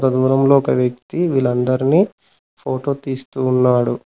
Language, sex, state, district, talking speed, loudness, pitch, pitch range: Telugu, male, Telangana, Mahabubabad, 120 wpm, -17 LUFS, 130 Hz, 125-140 Hz